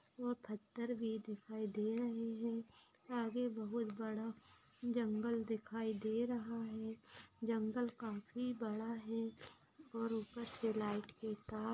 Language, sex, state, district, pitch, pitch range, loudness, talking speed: Hindi, female, Maharashtra, Aurangabad, 225 Hz, 220-235 Hz, -43 LUFS, 130 wpm